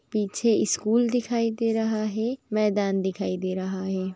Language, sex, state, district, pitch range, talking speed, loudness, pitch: Magahi, female, Bihar, Gaya, 190-230 Hz, 160 wpm, -25 LUFS, 215 Hz